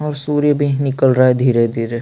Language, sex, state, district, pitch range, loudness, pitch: Hindi, male, Chhattisgarh, Sukma, 125-145 Hz, -15 LUFS, 135 Hz